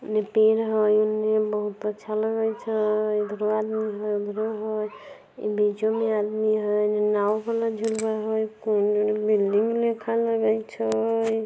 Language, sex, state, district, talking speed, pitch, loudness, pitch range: Maithili, female, Bihar, Samastipur, 145 wpm, 215 Hz, -24 LUFS, 210-220 Hz